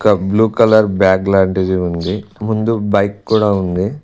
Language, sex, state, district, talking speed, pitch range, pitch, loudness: Telugu, male, Telangana, Mahabubabad, 150 wpm, 95-110 Hz, 100 Hz, -14 LUFS